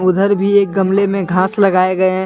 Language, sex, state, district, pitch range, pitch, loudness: Hindi, male, Jharkhand, Deoghar, 185-200 Hz, 195 Hz, -14 LUFS